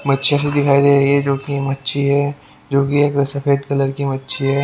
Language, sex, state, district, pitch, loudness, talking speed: Hindi, male, Haryana, Jhajjar, 140 Hz, -16 LUFS, 230 wpm